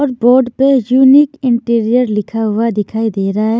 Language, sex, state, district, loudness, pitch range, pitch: Hindi, female, Maharashtra, Washim, -12 LUFS, 220-260 Hz, 235 Hz